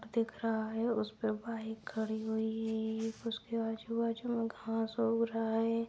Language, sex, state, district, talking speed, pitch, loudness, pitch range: Hindi, female, Bihar, Madhepura, 155 wpm, 225 Hz, -36 LUFS, 220-230 Hz